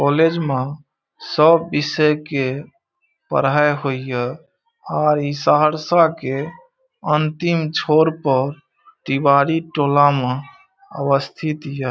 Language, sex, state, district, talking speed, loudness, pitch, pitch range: Maithili, male, Bihar, Saharsa, 100 wpm, -18 LUFS, 150 Hz, 140-165 Hz